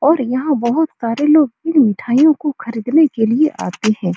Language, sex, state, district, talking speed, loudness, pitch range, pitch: Hindi, female, Bihar, Supaul, 185 wpm, -15 LUFS, 230-310 Hz, 275 Hz